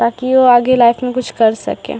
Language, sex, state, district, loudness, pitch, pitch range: Hindi, male, Bihar, Samastipur, -12 LUFS, 245 Hz, 235-255 Hz